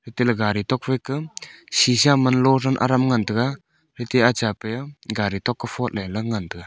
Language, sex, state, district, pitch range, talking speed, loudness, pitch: Wancho, male, Arunachal Pradesh, Longding, 110-130 Hz, 200 wpm, -21 LUFS, 125 Hz